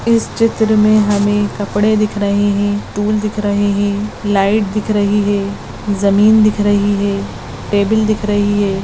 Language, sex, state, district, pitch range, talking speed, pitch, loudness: Hindi, female, Maharashtra, Aurangabad, 205-215 Hz, 165 wpm, 205 Hz, -14 LUFS